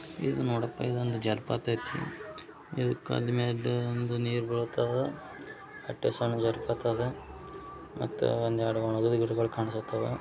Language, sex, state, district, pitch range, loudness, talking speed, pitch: Kannada, male, Karnataka, Bijapur, 115-120 Hz, -31 LUFS, 130 wpm, 115 Hz